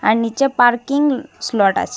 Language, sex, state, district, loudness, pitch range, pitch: Bengali, female, Assam, Hailakandi, -17 LUFS, 230-275 Hz, 245 Hz